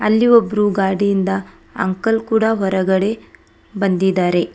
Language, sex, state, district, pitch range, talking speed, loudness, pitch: Kannada, female, Karnataka, Bangalore, 190-220 Hz, 90 wpm, -17 LUFS, 195 Hz